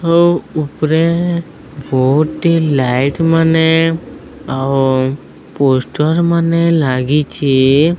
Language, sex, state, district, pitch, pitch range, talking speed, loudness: Odia, male, Odisha, Sambalpur, 155 Hz, 135-165 Hz, 70 wpm, -13 LUFS